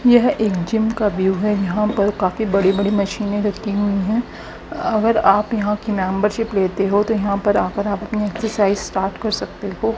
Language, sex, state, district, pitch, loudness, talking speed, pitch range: Hindi, female, Haryana, Charkhi Dadri, 205 Hz, -19 LUFS, 195 wpm, 195-215 Hz